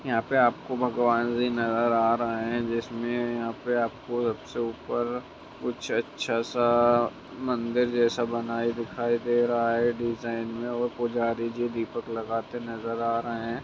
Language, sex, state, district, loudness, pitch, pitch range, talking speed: Hindi, male, Bihar, Jamui, -27 LUFS, 120 Hz, 115-120 Hz, 165 wpm